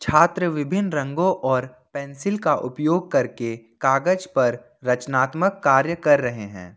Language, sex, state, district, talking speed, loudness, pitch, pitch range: Hindi, male, Jharkhand, Ranchi, 135 wpm, -21 LUFS, 140 Hz, 125-170 Hz